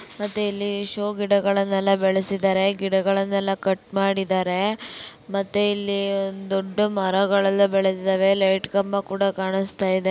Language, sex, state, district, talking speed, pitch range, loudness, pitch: Kannada, female, Karnataka, Dakshina Kannada, 115 wpm, 195-200 Hz, -22 LUFS, 195 Hz